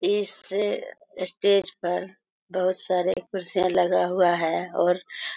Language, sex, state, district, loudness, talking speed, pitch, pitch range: Hindi, female, Jharkhand, Sahebganj, -25 LUFS, 125 wpm, 185 Hz, 180-200 Hz